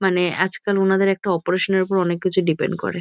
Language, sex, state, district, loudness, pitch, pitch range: Bengali, female, West Bengal, Kolkata, -20 LUFS, 185 Hz, 180-195 Hz